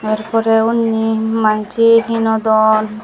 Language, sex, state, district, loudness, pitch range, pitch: Chakma, female, Tripura, Dhalai, -14 LUFS, 215-225 Hz, 220 Hz